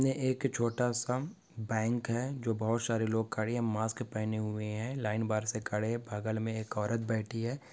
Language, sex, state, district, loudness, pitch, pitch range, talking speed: Hindi, male, Maharashtra, Nagpur, -34 LUFS, 115 Hz, 110-125 Hz, 195 wpm